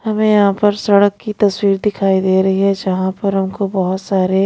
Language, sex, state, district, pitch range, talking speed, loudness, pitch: Hindi, female, Punjab, Pathankot, 190-205 Hz, 200 wpm, -15 LUFS, 195 Hz